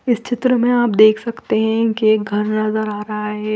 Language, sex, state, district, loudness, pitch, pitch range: Hindi, female, Punjab, Fazilka, -17 LUFS, 215 Hz, 215-235 Hz